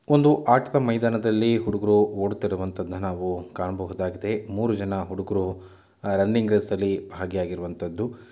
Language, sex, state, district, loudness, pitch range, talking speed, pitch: Kannada, male, Karnataka, Mysore, -25 LUFS, 95-110 Hz, 100 wpm, 100 Hz